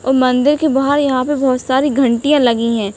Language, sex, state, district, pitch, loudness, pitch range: Hindi, female, Uttar Pradesh, Ghazipur, 265 Hz, -14 LUFS, 250-285 Hz